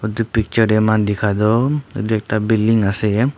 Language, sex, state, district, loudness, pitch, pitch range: Nagamese, male, Nagaland, Dimapur, -17 LUFS, 110 Hz, 105-115 Hz